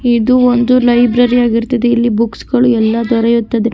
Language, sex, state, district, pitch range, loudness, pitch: Kannada, female, Karnataka, Gulbarga, 230-245 Hz, -11 LUFS, 240 Hz